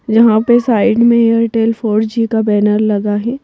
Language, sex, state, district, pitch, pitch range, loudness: Hindi, female, Madhya Pradesh, Bhopal, 225 Hz, 215-230 Hz, -12 LUFS